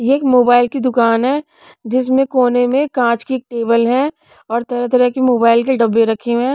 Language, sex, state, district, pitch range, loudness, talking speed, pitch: Hindi, female, Punjab, Pathankot, 235-265 Hz, -15 LUFS, 200 wpm, 250 Hz